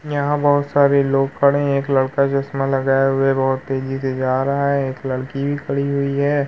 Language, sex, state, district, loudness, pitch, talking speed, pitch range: Hindi, male, Uttar Pradesh, Muzaffarnagar, -18 LUFS, 140 Hz, 220 wpm, 135-140 Hz